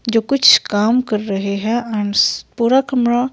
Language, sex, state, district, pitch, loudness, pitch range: Hindi, female, Himachal Pradesh, Shimla, 230 Hz, -16 LUFS, 205-245 Hz